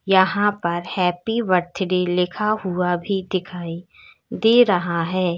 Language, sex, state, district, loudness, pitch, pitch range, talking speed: Hindi, female, Uttar Pradesh, Lalitpur, -20 LUFS, 185 Hz, 175-200 Hz, 120 wpm